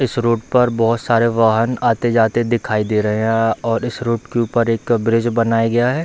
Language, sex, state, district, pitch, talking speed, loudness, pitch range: Hindi, male, Bihar, Darbhanga, 115 Hz, 210 wpm, -17 LUFS, 115-120 Hz